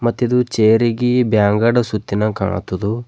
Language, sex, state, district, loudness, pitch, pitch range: Kannada, male, Karnataka, Bidar, -16 LUFS, 110 Hz, 105-120 Hz